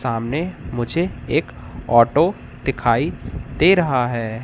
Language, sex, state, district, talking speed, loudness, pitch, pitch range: Hindi, male, Madhya Pradesh, Katni, 110 wpm, -19 LUFS, 120 Hz, 115-165 Hz